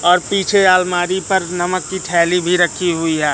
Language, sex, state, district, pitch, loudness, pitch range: Hindi, male, Madhya Pradesh, Katni, 180 Hz, -15 LUFS, 175-185 Hz